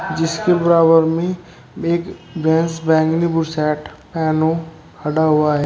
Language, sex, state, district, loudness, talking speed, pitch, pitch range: Hindi, male, Uttar Pradesh, Shamli, -17 LUFS, 140 wpm, 165 Hz, 155-170 Hz